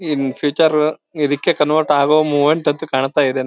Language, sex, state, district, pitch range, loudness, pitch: Kannada, male, Karnataka, Bellary, 145-155 Hz, -16 LUFS, 150 Hz